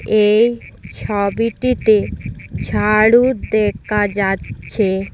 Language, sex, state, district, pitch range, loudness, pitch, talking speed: Bengali, female, Assam, Hailakandi, 205-230 Hz, -16 LUFS, 215 Hz, 60 wpm